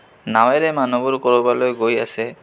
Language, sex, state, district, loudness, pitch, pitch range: Assamese, male, Assam, Kamrup Metropolitan, -18 LUFS, 125 Hz, 120-130 Hz